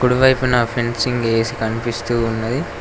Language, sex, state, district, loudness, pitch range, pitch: Telugu, male, Telangana, Mahabubabad, -18 LUFS, 115-125 Hz, 120 Hz